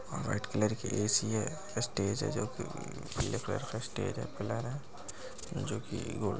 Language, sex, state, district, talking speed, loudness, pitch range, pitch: Hindi, male, Bihar, Begusarai, 195 wpm, -36 LUFS, 105-135 Hz, 120 Hz